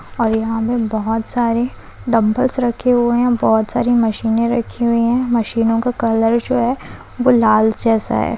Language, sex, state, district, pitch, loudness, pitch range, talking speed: Hindi, female, Chhattisgarh, Raigarh, 235 Hz, -16 LUFS, 225-245 Hz, 170 wpm